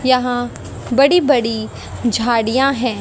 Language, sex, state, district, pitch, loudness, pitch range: Hindi, female, Haryana, Jhajjar, 245 Hz, -16 LUFS, 230-265 Hz